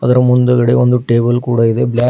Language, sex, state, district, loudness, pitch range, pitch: Kannada, female, Karnataka, Bidar, -12 LUFS, 120-125 Hz, 120 Hz